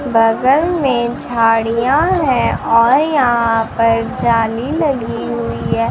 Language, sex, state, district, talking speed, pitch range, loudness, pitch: Hindi, female, Bihar, Kaimur, 110 wpm, 230-270 Hz, -14 LUFS, 235 Hz